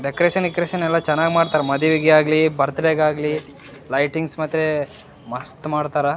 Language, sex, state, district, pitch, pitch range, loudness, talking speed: Kannada, male, Karnataka, Raichur, 155 Hz, 145-160 Hz, -19 LUFS, 135 wpm